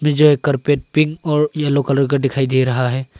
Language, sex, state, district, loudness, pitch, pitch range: Hindi, male, Arunachal Pradesh, Longding, -16 LUFS, 140 Hz, 135-150 Hz